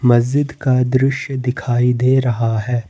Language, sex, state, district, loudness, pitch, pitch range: Hindi, male, Jharkhand, Ranchi, -17 LUFS, 125 Hz, 120-135 Hz